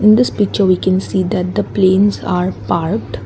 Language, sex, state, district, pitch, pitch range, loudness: English, female, Assam, Kamrup Metropolitan, 190 Hz, 180-205 Hz, -15 LUFS